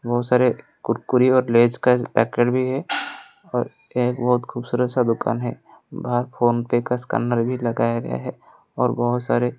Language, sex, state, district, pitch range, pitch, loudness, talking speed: Hindi, male, Odisha, Khordha, 120-125 Hz, 120 Hz, -21 LUFS, 180 wpm